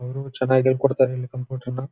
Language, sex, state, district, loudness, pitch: Kannada, male, Karnataka, Chamarajanagar, -22 LUFS, 130 Hz